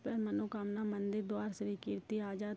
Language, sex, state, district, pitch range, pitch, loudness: Hindi, female, Bihar, Darbhanga, 205-215 Hz, 210 Hz, -39 LUFS